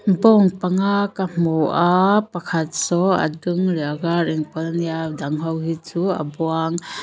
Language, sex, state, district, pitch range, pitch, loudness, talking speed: Mizo, female, Mizoram, Aizawl, 160-185 Hz, 170 Hz, -20 LUFS, 195 wpm